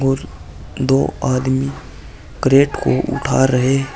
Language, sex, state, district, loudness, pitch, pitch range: Hindi, male, Uttar Pradesh, Saharanpur, -17 LUFS, 130 Hz, 130-135 Hz